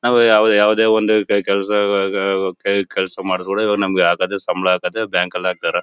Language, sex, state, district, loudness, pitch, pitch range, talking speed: Kannada, male, Karnataka, Bellary, -17 LUFS, 100 Hz, 95-105 Hz, 195 wpm